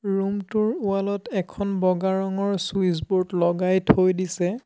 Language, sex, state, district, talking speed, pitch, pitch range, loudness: Assamese, male, Assam, Sonitpur, 130 wpm, 190 Hz, 185-200 Hz, -23 LUFS